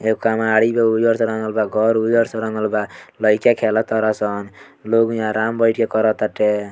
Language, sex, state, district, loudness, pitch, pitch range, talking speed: Bhojpuri, male, Bihar, Muzaffarpur, -18 LUFS, 110 Hz, 110-115 Hz, 205 wpm